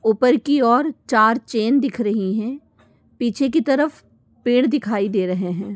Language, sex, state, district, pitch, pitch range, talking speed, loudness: Hindi, female, Uttar Pradesh, Deoria, 240 Hz, 215-275 Hz, 165 wpm, -19 LUFS